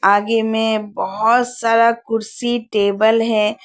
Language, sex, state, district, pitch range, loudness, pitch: Hindi, female, Arunachal Pradesh, Lower Dibang Valley, 215-230 Hz, -17 LUFS, 225 Hz